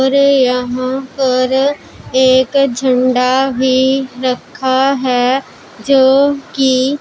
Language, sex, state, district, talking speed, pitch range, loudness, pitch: Hindi, female, Punjab, Pathankot, 75 wpm, 255-270 Hz, -13 LUFS, 260 Hz